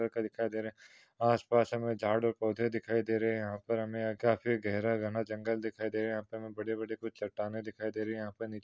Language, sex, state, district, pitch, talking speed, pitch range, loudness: Hindi, male, Maharashtra, Pune, 110 Hz, 255 wpm, 110-115 Hz, -34 LUFS